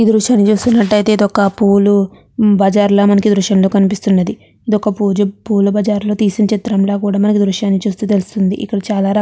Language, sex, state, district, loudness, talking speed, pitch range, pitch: Telugu, female, Andhra Pradesh, Chittoor, -13 LUFS, 135 wpm, 200-210 Hz, 205 Hz